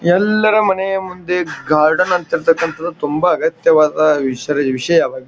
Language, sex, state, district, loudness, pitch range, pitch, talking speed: Kannada, male, Karnataka, Bijapur, -15 LUFS, 150-180 Hz, 165 Hz, 115 wpm